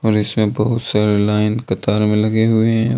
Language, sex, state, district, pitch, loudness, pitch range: Hindi, male, Jharkhand, Deoghar, 105 Hz, -16 LUFS, 105-110 Hz